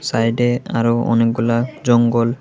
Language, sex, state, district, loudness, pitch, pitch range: Bengali, male, Tripura, West Tripura, -17 LUFS, 120 Hz, 115-120 Hz